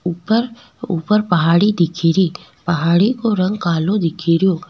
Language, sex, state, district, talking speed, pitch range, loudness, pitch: Rajasthani, female, Rajasthan, Nagaur, 115 wpm, 170-210 Hz, -16 LUFS, 180 Hz